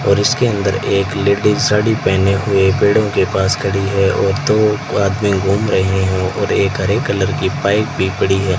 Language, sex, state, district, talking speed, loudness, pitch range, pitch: Hindi, male, Rajasthan, Bikaner, 190 wpm, -15 LUFS, 95-105 Hz, 100 Hz